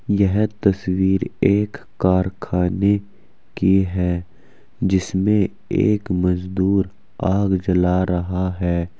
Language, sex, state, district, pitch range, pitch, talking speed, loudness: Hindi, male, Uttar Pradesh, Saharanpur, 90-100 Hz, 95 Hz, 85 wpm, -20 LUFS